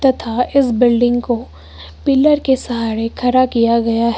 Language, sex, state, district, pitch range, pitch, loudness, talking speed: Hindi, female, Uttar Pradesh, Lucknow, 230-255 Hz, 240 Hz, -15 LUFS, 155 wpm